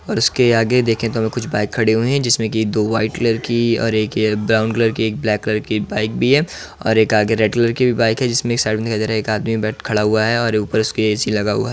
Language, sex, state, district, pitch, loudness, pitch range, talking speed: Hindi, male, Uttar Pradesh, Muzaffarnagar, 110 Hz, -17 LUFS, 110-115 Hz, 245 wpm